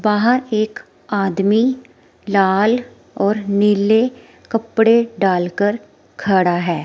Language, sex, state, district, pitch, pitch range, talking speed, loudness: Hindi, female, Himachal Pradesh, Shimla, 210 Hz, 195-225 Hz, 90 wpm, -17 LUFS